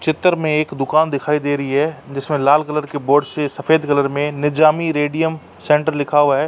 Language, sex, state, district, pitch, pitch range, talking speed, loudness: Hindi, male, Uttar Pradesh, Jalaun, 150 Hz, 145-155 Hz, 215 wpm, -17 LUFS